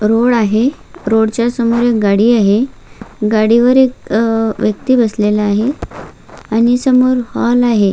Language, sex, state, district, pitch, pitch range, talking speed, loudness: Marathi, female, Maharashtra, Solapur, 230 Hz, 215-245 Hz, 130 wpm, -13 LUFS